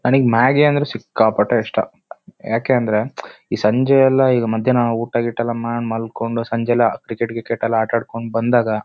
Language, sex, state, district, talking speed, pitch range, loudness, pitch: Kannada, male, Karnataka, Shimoga, 140 wpm, 115-120 Hz, -18 LUFS, 115 Hz